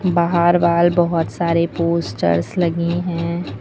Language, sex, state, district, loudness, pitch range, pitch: Hindi, female, Uttar Pradesh, Lucknow, -18 LUFS, 170-175 Hz, 170 Hz